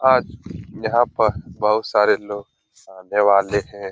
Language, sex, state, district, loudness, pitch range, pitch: Hindi, male, Bihar, Jahanabad, -19 LUFS, 100-110 Hz, 105 Hz